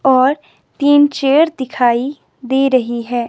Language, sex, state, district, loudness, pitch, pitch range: Hindi, female, Himachal Pradesh, Shimla, -14 LUFS, 265 Hz, 245-285 Hz